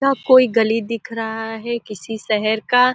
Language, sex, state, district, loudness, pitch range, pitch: Hindi, female, Uttar Pradesh, Deoria, -19 LUFS, 220-245 Hz, 225 Hz